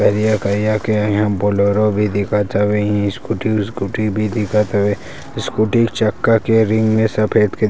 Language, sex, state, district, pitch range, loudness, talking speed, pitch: Chhattisgarhi, male, Chhattisgarh, Sarguja, 105-110 Hz, -17 LUFS, 150 wpm, 105 Hz